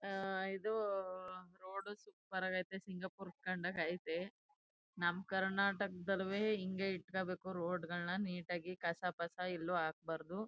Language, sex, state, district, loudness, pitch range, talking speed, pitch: Kannada, female, Karnataka, Chamarajanagar, -41 LUFS, 175-195 Hz, 115 wpm, 185 Hz